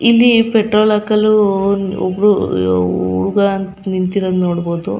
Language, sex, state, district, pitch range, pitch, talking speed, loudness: Kannada, female, Karnataka, Chamarajanagar, 180-215 Hz, 195 Hz, 130 wpm, -14 LUFS